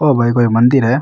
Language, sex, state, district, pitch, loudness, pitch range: Rajasthani, male, Rajasthan, Nagaur, 120 Hz, -12 LUFS, 120-135 Hz